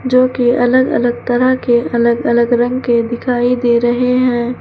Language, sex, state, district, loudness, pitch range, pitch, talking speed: Hindi, female, Uttar Pradesh, Lucknow, -13 LUFS, 240-250 Hz, 245 Hz, 170 wpm